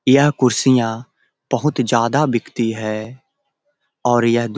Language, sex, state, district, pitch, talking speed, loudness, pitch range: Hindi, male, Bihar, Jahanabad, 125 Hz, 130 wpm, -18 LUFS, 115-145 Hz